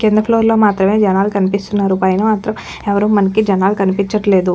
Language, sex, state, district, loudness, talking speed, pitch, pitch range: Telugu, female, Telangana, Nalgonda, -14 LUFS, 160 wpm, 200 Hz, 195-215 Hz